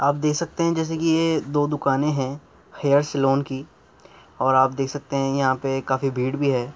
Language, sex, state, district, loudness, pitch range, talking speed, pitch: Hindi, male, Uttar Pradesh, Muzaffarnagar, -22 LUFS, 135-150 Hz, 215 wpm, 140 Hz